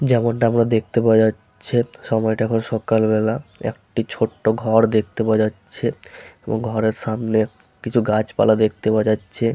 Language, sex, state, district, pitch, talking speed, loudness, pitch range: Bengali, male, West Bengal, Malda, 110 Hz, 155 wpm, -20 LUFS, 110-115 Hz